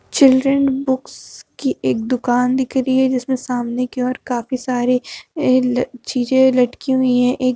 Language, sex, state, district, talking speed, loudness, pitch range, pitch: Hindi, female, Bihar, Vaishali, 150 wpm, -17 LUFS, 250-260 Hz, 255 Hz